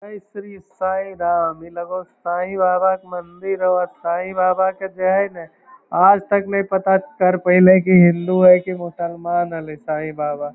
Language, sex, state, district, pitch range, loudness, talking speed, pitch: Hindi, male, Bihar, Lakhisarai, 175-190 Hz, -18 LUFS, 180 wpm, 185 Hz